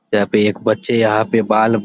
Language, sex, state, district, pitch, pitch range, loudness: Hindi, male, Bihar, Supaul, 110 Hz, 105-115 Hz, -15 LUFS